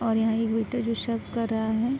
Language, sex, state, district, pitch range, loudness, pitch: Hindi, female, Bihar, Araria, 225-230 Hz, -27 LUFS, 225 Hz